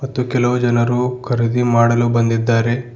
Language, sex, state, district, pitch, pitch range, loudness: Kannada, male, Karnataka, Bidar, 120 Hz, 115-125 Hz, -16 LUFS